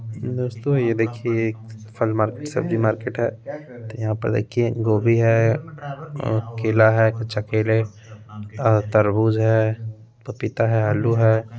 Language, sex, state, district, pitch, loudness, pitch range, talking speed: Hindi, male, Bihar, Begusarai, 115 Hz, -21 LUFS, 110-120 Hz, 140 wpm